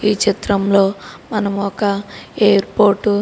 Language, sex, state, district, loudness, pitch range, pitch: Telugu, female, Telangana, Karimnagar, -16 LUFS, 200-210 Hz, 205 Hz